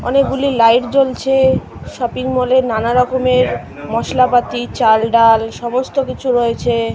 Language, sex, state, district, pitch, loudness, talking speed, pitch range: Bengali, female, West Bengal, Kolkata, 250 Hz, -15 LUFS, 120 wpm, 230-260 Hz